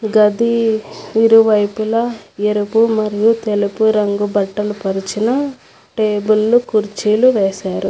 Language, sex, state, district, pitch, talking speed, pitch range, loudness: Telugu, female, Telangana, Hyderabad, 215 Hz, 85 wpm, 205-225 Hz, -15 LUFS